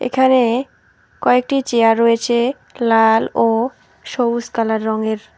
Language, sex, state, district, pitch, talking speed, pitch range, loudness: Bengali, female, West Bengal, Alipurduar, 235 Hz, 100 wpm, 225-250 Hz, -16 LUFS